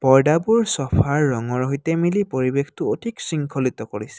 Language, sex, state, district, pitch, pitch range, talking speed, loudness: Assamese, male, Assam, Kamrup Metropolitan, 140 Hz, 130-165 Hz, 130 wpm, -21 LUFS